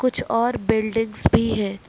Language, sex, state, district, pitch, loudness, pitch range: Hindi, male, Jharkhand, Ranchi, 225 Hz, -21 LUFS, 215-230 Hz